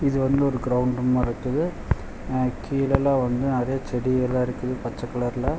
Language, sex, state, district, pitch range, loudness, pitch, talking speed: Tamil, male, Tamil Nadu, Chennai, 125-135 Hz, -24 LUFS, 125 Hz, 150 wpm